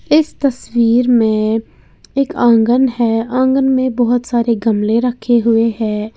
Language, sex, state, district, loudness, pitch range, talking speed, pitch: Hindi, female, Uttar Pradesh, Lalitpur, -14 LUFS, 225-255 Hz, 135 wpm, 235 Hz